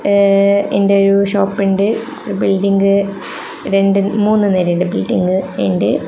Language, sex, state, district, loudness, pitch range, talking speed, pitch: Malayalam, female, Kerala, Kasaragod, -14 LUFS, 195-200 Hz, 110 wpm, 195 Hz